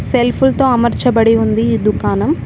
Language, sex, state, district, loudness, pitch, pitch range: Telugu, female, Telangana, Mahabubabad, -13 LUFS, 235 Hz, 225-245 Hz